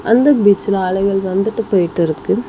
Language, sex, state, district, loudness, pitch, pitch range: Tamil, female, Tamil Nadu, Chennai, -15 LUFS, 195 Hz, 185-215 Hz